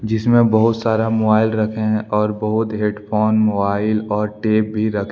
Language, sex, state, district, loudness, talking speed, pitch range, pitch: Hindi, male, Jharkhand, Deoghar, -17 LUFS, 175 wpm, 105-110 Hz, 110 Hz